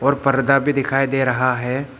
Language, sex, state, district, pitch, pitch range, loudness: Hindi, male, Arunachal Pradesh, Papum Pare, 135 Hz, 130-140 Hz, -18 LUFS